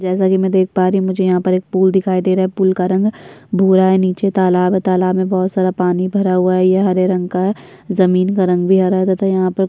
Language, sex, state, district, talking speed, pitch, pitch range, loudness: Hindi, female, Bihar, Kishanganj, 255 wpm, 185 Hz, 185-190 Hz, -15 LUFS